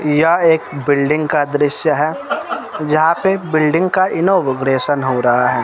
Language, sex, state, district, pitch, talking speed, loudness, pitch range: Hindi, female, Bihar, West Champaran, 150 Hz, 150 wpm, -15 LUFS, 140-165 Hz